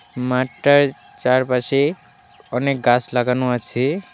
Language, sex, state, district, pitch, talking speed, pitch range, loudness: Bengali, male, West Bengal, Alipurduar, 130 Hz, 100 wpm, 125-140 Hz, -19 LUFS